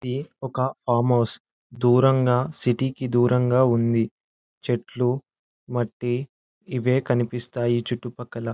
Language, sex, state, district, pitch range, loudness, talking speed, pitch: Telugu, male, Andhra Pradesh, Anantapur, 120-130 Hz, -23 LUFS, 110 wpm, 125 Hz